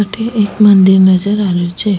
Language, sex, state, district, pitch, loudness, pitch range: Rajasthani, female, Rajasthan, Nagaur, 200 Hz, -10 LUFS, 190-210 Hz